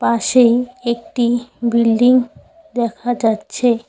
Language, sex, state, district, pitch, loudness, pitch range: Bengali, female, West Bengal, Cooch Behar, 240 Hz, -16 LUFS, 235-245 Hz